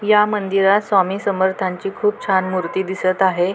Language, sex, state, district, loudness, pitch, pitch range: Marathi, female, Maharashtra, Pune, -18 LUFS, 195 Hz, 185-200 Hz